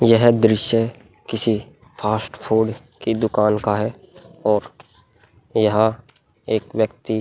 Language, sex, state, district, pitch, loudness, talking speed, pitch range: Hindi, male, Uttar Pradesh, Muzaffarnagar, 110 Hz, -20 LUFS, 115 wpm, 105-115 Hz